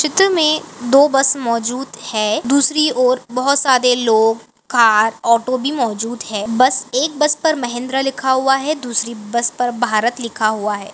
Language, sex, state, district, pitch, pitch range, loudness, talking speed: Hindi, female, Chhattisgarh, Bastar, 250 Hz, 230-270 Hz, -16 LUFS, 170 wpm